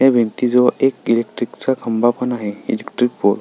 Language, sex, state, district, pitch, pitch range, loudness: Marathi, male, Maharashtra, Sindhudurg, 125 Hz, 115-125 Hz, -18 LUFS